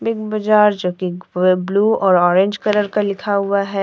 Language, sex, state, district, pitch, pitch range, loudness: Hindi, female, Jharkhand, Deoghar, 200 Hz, 185-210 Hz, -16 LUFS